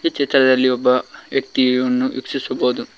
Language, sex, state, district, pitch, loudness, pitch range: Kannada, male, Karnataka, Koppal, 130 Hz, -18 LUFS, 125-135 Hz